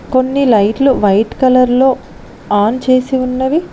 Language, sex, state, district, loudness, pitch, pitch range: Telugu, female, Telangana, Mahabubabad, -12 LUFS, 255 Hz, 225-265 Hz